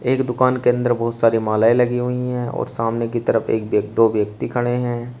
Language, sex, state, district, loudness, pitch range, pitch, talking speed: Hindi, male, Uttar Pradesh, Shamli, -19 LUFS, 115-125 Hz, 120 Hz, 220 wpm